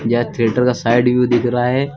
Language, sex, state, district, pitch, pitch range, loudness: Hindi, male, Uttar Pradesh, Lucknow, 120 Hz, 120-125 Hz, -16 LUFS